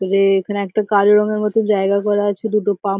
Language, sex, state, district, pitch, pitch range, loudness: Bengali, female, West Bengal, Paschim Medinipur, 205 Hz, 195-210 Hz, -17 LUFS